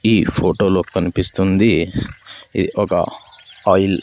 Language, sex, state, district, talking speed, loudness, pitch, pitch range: Telugu, male, Andhra Pradesh, Sri Satya Sai, 105 wpm, -17 LUFS, 95 Hz, 95-100 Hz